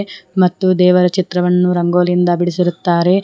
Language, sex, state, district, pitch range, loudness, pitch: Kannada, female, Karnataka, Koppal, 175-185 Hz, -14 LUFS, 180 Hz